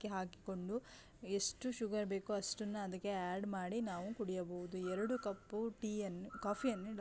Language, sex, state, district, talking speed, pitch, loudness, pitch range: Kannada, female, Karnataka, Belgaum, 145 wpm, 205 Hz, -42 LUFS, 190-220 Hz